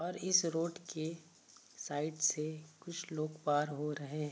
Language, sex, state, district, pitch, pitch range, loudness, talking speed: Hindi, male, Uttar Pradesh, Varanasi, 155 Hz, 150-165 Hz, -36 LUFS, 165 wpm